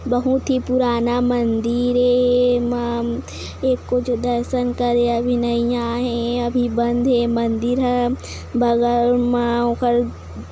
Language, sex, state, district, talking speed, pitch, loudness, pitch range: Hindi, female, Chhattisgarh, Kabirdham, 120 wpm, 240 Hz, -19 LUFS, 235-245 Hz